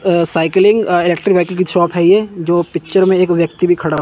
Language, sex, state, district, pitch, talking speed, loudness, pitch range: Hindi, male, Chandigarh, Chandigarh, 175 Hz, 195 wpm, -13 LUFS, 170-185 Hz